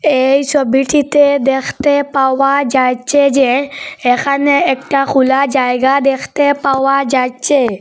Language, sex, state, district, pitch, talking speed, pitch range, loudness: Bengali, female, Assam, Hailakandi, 275 Hz, 100 wpm, 265-285 Hz, -12 LUFS